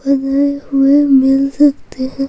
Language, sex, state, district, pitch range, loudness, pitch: Hindi, female, Bihar, Patna, 270-280 Hz, -12 LUFS, 275 Hz